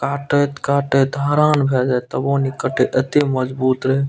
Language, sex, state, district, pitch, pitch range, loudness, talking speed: Maithili, male, Bihar, Purnia, 140 Hz, 130-140 Hz, -18 LUFS, 160 wpm